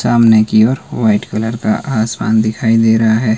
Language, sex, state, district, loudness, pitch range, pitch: Hindi, male, Himachal Pradesh, Shimla, -13 LUFS, 110-115 Hz, 110 Hz